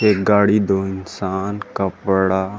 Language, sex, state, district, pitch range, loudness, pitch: Chhattisgarhi, male, Chhattisgarh, Rajnandgaon, 95-105 Hz, -19 LUFS, 95 Hz